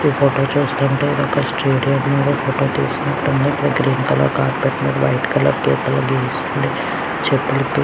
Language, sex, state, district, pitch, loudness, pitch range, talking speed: Telugu, male, Andhra Pradesh, Guntur, 135 Hz, -17 LUFS, 115-140 Hz, 155 wpm